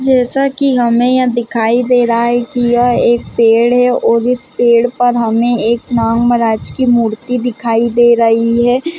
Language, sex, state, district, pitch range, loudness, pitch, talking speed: Hindi, female, Chhattisgarh, Balrampur, 235-245 Hz, -12 LUFS, 240 Hz, 180 wpm